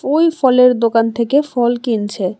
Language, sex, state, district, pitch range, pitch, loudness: Bengali, female, Tripura, West Tripura, 230-270 Hz, 240 Hz, -14 LUFS